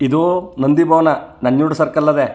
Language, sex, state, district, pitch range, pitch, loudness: Kannada, male, Karnataka, Chamarajanagar, 150-170 Hz, 155 Hz, -15 LUFS